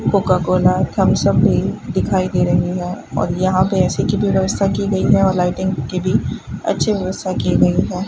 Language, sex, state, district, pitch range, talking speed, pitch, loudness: Hindi, female, Rajasthan, Bikaner, 175-185 Hz, 210 wpm, 185 Hz, -17 LUFS